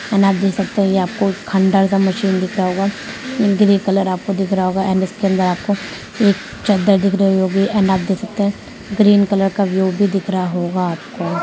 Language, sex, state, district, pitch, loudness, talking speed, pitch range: Hindi, female, Bihar, Gaya, 195 Hz, -16 LUFS, 215 wpm, 190-200 Hz